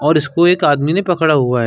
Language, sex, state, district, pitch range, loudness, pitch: Hindi, male, Uttar Pradesh, Jalaun, 145-175 Hz, -14 LUFS, 155 Hz